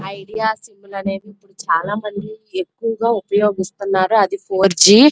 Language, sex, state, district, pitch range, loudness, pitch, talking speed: Telugu, female, Andhra Pradesh, Krishna, 195-215 Hz, -17 LUFS, 200 Hz, 155 wpm